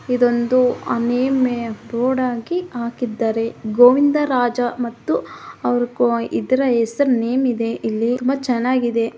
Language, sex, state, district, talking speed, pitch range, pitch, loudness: Kannada, female, Karnataka, Mysore, 100 wpm, 235-255 Hz, 245 Hz, -19 LUFS